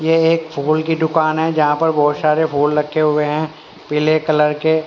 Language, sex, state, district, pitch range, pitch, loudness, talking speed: Hindi, male, Haryana, Rohtak, 150-160 Hz, 155 Hz, -16 LUFS, 210 wpm